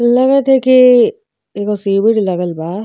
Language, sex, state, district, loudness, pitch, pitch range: Bhojpuri, female, Uttar Pradesh, Gorakhpur, -12 LUFS, 225 Hz, 195-260 Hz